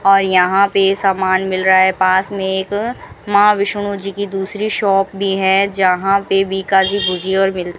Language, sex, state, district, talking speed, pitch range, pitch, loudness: Hindi, female, Rajasthan, Bikaner, 185 wpm, 190-200 Hz, 195 Hz, -15 LUFS